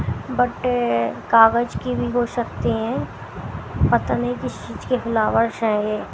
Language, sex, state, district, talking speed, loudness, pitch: Hindi, female, Haryana, Jhajjar, 145 wpm, -21 LUFS, 225 Hz